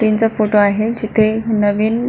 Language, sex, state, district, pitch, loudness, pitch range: Marathi, female, Maharashtra, Solapur, 215 Hz, -15 LUFS, 215-225 Hz